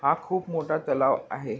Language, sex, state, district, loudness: Marathi, male, Maharashtra, Pune, -27 LUFS